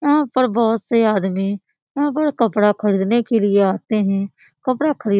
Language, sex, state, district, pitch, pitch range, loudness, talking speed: Hindi, female, Bihar, Lakhisarai, 225 Hz, 200-255 Hz, -18 LUFS, 185 wpm